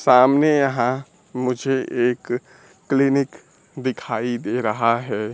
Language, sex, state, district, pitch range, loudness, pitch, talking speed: Hindi, male, Bihar, Kaimur, 120-140 Hz, -21 LUFS, 125 Hz, 100 wpm